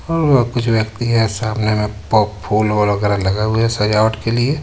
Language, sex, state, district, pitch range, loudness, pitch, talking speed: Hindi, male, Jharkhand, Ranchi, 105-115 Hz, -16 LUFS, 110 Hz, 205 wpm